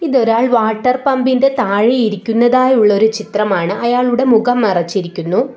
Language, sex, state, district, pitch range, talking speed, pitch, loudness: Malayalam, female, Kerala, Kollam, 210-255 Hz, 95 wpm, 230 Hz, -13 LUFS